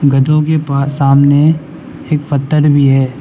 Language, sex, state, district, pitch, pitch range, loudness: Hindi, male, Arunachal Pradesh, Lower Dibang Valley, 145 Hz, 140-150 Hz, -11 LUFS